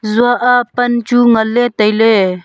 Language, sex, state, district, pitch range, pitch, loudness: Wancho, female, Arunachal Pradesh, Longding, 220-245 Hz, 235 Hz, -12 LUFS